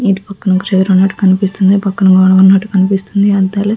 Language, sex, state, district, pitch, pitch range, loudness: Telugu, female, Andhra Pradesh, Visakhapatnam, 195 Hz, 190-200 Hz, -11 LUFS